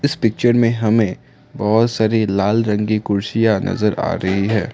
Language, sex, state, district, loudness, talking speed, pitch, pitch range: Hindi, male, Assam, Kamrup Metropolitan, -17 LUFS, 175 wpm, 110 Hz, 105-115 Hz